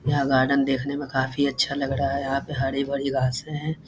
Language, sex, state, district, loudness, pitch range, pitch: Hindi, male, Bihar, Jahanabad, -24 LUFS, 135-140 Hz, 140 Hz